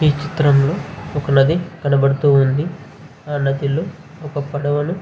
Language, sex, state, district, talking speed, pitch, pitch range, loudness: Telugu, male, Andhra Pradesh, Visakhapatnam, 130 wpm, 145 Hz, 140-155 Hz, -18 LUFS